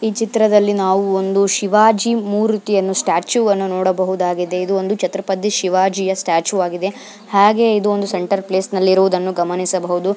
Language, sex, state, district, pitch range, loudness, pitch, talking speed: Kannada, female, Karnataka, Bijapur, 185-205 Hz, -16 LUFS, 195 Hz, 135 wpm